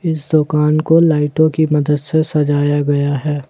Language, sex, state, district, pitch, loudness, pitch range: Hindi, male, Jharkhand, Ranchi, 150 Hz, -15 LUFS, 145-155 Hz